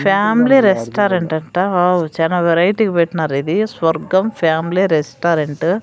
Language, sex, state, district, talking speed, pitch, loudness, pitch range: Telugu, female, Andhra Pradesh, Sri Satya Sai, 125 wpm, 175 Hz, -15 LUFS, 160-195 Hz